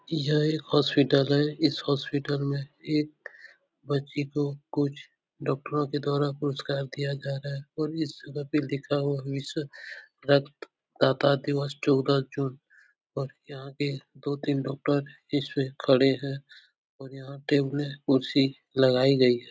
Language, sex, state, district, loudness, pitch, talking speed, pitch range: Hindi, male, Uttar Pradesh, Etah, -27 LUFS, 140 Hz, 135 wpm, 140-145 Hz